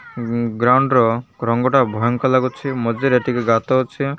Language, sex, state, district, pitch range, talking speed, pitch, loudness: Odia, male, Odisha, Malkangiri, 115-130 Hz, 155 wpm, 125 Hz, -18 LUFS